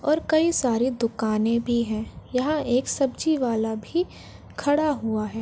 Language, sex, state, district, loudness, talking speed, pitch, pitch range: Hindi, female, Uttar Pradesh, Varanasi, -24 LUFS, 145 wpm, 250 Hz, 225-300 Hz